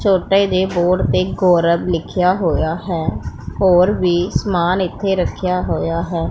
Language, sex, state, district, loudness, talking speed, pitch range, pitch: Punjabi, female, Punjab, Pathankot, -17 LUFS, 145 wpm, 170-185 Hz, 180 Hz